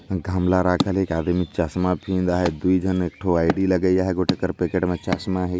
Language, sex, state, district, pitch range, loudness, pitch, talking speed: Chhattisgarhi, male, Chhattisgarh, Jashpur, 90-95 Hz, -22 LUFS, 90 Hz, 225 wpm